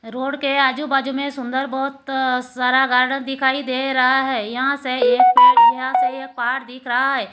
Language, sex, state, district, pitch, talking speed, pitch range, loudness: Hindi, female, Maharashtra, Gondia, 265 Hz, 190 wpm, 255-275 Hz, -18 LUFS